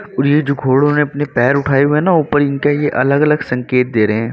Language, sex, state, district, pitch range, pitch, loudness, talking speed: Hindi, male, Uttar Pradesh, Gorakhpur, 125-145 Hz, 140 Hz, -14 LUFS, 265 wpm